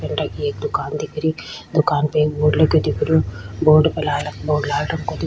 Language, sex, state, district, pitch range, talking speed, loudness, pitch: Rajasthani, female, Rajasthan, Churu, 145-155 Hz, 240 wpm, -19 LUFS, 150 Hz